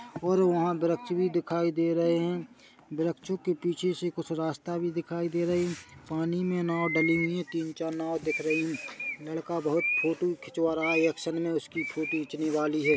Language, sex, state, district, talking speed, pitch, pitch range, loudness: Hindi, male, Chhattisgarh, Korba, 205 wpm, 165 Hz, 160-175 Hz, -29 LUFS